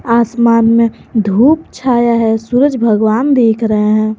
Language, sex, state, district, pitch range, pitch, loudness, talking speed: Hindi, female, Jharkhand, Garhwa, 220-245 Hz, 230 Hz, -12 LUFS, 145 wpm